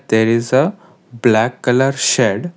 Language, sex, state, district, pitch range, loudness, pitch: English, male, Karnataka, Bangalore, 115-165 Hz, -15 LUFS, 125 Hz